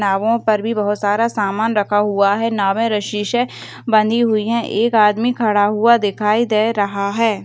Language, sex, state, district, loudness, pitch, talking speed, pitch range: Hindi, female, Bihar, Begusarai, -16 LUFS, 215 Hz, 195 wpm, 205-230 Hz